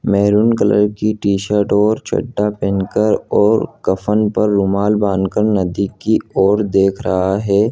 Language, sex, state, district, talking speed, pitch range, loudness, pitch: Hindi, male, Jharkhand, Jamtara, 150 wpm, 100-105 Hz, -15 LUFS, 100 Hz